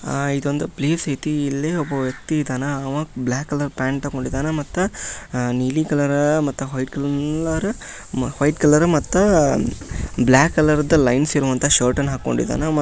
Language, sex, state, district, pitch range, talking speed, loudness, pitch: Kannada, male, Karnataka, Dharwad, 130-155 Hz, 140 wpm, -20 LUFS, 145 Hz